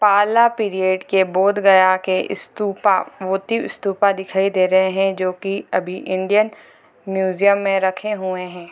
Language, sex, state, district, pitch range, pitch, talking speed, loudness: Hindi, female, Bihar, Gopalganj, 185-200 Hz, 190 Hz, 160 wpm, -18 LUFS